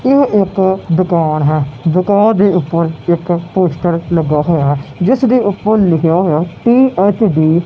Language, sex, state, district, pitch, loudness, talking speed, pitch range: Punjabi, male, Punjab, Kapurthala, 175 Hz, -12 LUFS, 135 wpm, 165-200 Hz